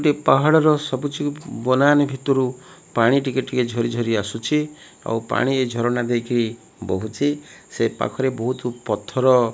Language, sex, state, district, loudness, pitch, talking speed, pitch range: Odia, male, Odisha, Malkangiri, -21 LUFS, 130 Hz, 125 wpm, 115-145 Hz